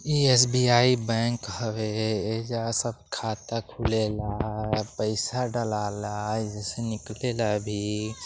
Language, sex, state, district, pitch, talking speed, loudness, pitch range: Bhojpuri, male, Uttar Pradesh, Deoria, 110 Hz, 130 wpm, -27 LUFS, 105-120 Hz